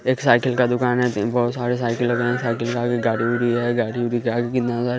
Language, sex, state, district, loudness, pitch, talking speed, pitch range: Hindi, male, Bihar, West Champaran, -21 LUFS, 120 Hz, 275 wpm, 120-125 Hz